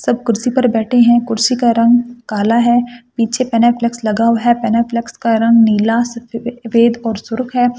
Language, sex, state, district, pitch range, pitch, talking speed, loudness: Hindi, female, Delhi, New Delhi, 230-240 Hz, 235 Hz, 190 wpm, -14 LUFS